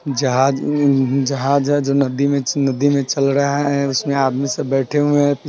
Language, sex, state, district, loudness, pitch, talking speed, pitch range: Hindi, male, Bihar, Sitamarhi, -17 LUFS, 140 Hz, 155 wpm, 135-145 Hz